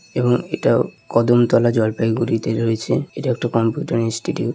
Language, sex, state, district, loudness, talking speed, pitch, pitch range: Bengali, male, West Bengal, Jalpaiguri, -19 LUFS, 120 wpm, 115 Hz, 115-125 Hz